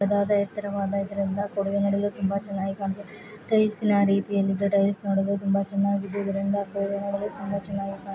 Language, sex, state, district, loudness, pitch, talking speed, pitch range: Kannada, female, Karnataka, Chamarajanagar, -26 LUFS, 200 Hz, 80 wpm, 195-200 Hz